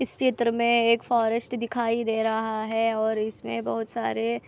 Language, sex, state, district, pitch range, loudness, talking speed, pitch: Hindi, female, Andhra Pradesh, Anantapur, 215-235 Hz, -25 LUFS, 160 wpm, 225 Hz